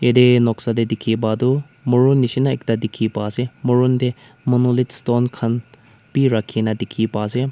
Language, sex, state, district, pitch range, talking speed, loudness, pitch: Nagamese, male, Nagaland, Kohima, 115-125 Hz, 175 wpm, -19 LUFS, 125 Hz